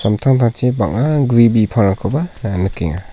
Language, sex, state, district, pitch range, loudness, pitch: Garo, male, Meghalaya, South Garo Hills, 100-125 Hz, -15 LUFS, 110 Hz